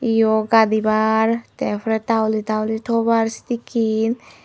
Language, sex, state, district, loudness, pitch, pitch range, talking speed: Chakma, female, Tripura, Unakoti, -19 LUFS, 225 Hz, 220-230 Hz, 110 wpm